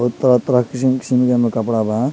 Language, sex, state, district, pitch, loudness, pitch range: Bhojpuri, male, Bihar, Muzaffarpur, 125 Hz, -16 LUFS, 115-130 Hz